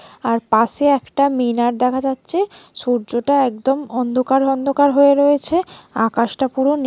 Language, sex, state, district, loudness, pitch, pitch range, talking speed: Bengali, female, West Bengal, Kolkata, -17 LUFS, 265 Hz, 240-280 Hz, 130 wpm